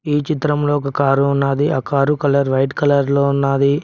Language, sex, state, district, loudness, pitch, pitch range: Telugu, male, Telangana, Mahabubabad, -17 LUFS, 140 Hz, 140-145 Hz